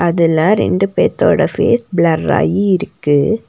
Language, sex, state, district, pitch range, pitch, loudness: Tamil, female, Tamil Nadu, Nilgiris, 165-205 Hz, 175 Hz, -14 LUFS